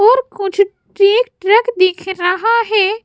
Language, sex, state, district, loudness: Hindi, female, Bihar, West Champaran, -14 LUFS